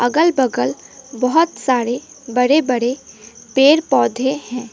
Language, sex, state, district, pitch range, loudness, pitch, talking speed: Hindi, female, West Bengal, Alipurduar, 240-280 Hz, -17 LUFS, 255 Hz, 115 wpm